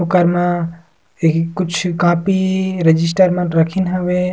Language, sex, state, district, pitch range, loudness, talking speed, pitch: Surgujia, male, Chhattisgarh, Sarguja, 165-185 Hz, -16 LUFS, 125 wpm, 175 Hz